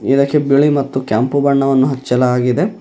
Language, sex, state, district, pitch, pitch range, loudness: Kannada, male, Karnataka, Bidar, 135 Hz, 130-140 Hz, -14 LUFS